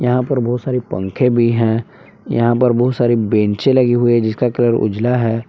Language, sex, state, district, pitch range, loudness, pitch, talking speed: Hindi, male, Jharkhand, Palamu, 115-125 Hz, -15 LUFS, 120 Hz, 230 wpm